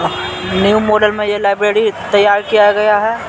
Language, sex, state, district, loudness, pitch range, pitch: Hindi, male, Bihar, Patna, -13 LUFS, 205-215 Hz, 210 Hz